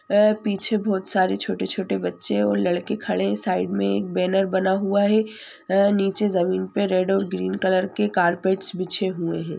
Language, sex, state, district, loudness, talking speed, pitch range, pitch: Hindi, female, Bihar, Saran, -22 LUFS, 195 wpm, 170-200 Hz, 190 Hz